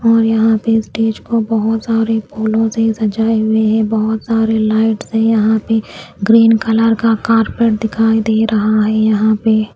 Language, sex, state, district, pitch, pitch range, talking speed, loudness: Hindi, female, Delhi, New Delhi, 220 Hz, 220-225 Hz, 180 wpm, -14 LUFS